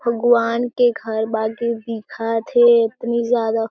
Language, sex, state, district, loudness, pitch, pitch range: Chhattisgarhi, female, Chhattisgarh, Jashpur, -18 LUFS, 230 Hz, 225-235 Hz